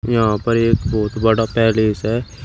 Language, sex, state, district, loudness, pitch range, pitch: Hindi, male, Uttar Pradesh, Shamli, -17 LUFS, 110-115 Hz, 110 Hz